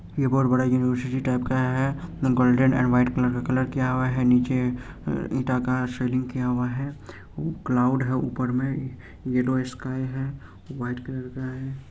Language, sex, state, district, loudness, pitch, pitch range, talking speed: Hindi, male, Bihar, Saharsa, -25 LUFS, 130 Hz, 125-130 Hz, 165 wpm